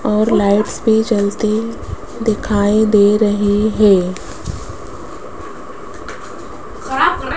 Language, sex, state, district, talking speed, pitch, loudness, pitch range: Hindi, female, Rajasthan, Jaipur, 65 wpm, 210 Hz, -15 LUFS, 205-220 Hz